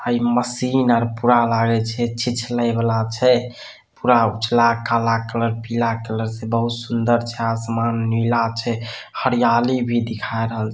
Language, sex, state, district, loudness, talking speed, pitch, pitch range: Maithili, male, Bihar, Samastipur, -20 LUFS, 150 wpm, 115 Hz, 115-120 Hz